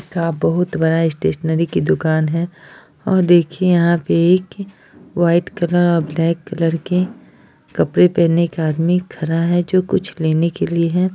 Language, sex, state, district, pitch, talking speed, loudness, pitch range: Hindi, male, Bihar, Araria, 170 Hz, 160 wpm, -17 LUFS, 165-180 Hz